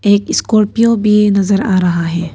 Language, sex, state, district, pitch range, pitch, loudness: Hindi, female, Arunachal Pradesh, Papum Pare, 185-210 Hz, 205 Hz, -12 LUFS